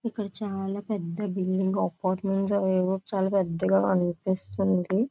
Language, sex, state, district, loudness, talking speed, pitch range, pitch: Telugu, female, Andhra Pradesh, Visakhapatnam, -27 LUFS, 130 wpm, 185-200 Hz, 195 Hz